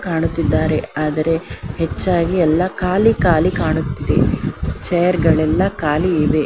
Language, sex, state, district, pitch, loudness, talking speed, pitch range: Kannada, female, Karnataka, Dakshina Kannada, 165 Hz, -17 LUFS, 100 wpm, 155-180 Hz